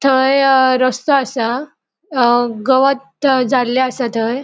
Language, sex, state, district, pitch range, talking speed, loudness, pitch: Konkani, female, Goa, North and South Goa, 245-275 Hz, 120 wpm, -15 LUFS, 260 Hz